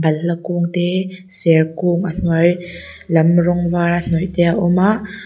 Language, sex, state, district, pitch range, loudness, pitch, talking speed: Mizo, female, Mizoram, Aizawl, 170-180 Hz, -16 LUFS, 175 Hz, 160 wpm